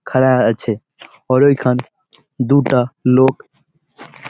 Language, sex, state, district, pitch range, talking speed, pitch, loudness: Bengali, male, West Bengal, Malda, 125-145 Hz, 85 wpm, 130 Hz, -15 LUFS